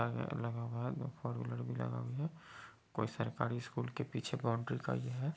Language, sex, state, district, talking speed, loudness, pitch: Hindi, male, Bihar, Muzaffarpur, 235 wpm, -40 LUFS, 115 Hz